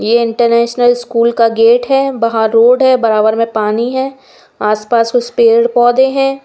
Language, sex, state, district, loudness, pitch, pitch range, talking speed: Hindi, female, Bihar, West Champaran, -11 LUFS, 235 Hz, 230-250 Hz, 160 wpm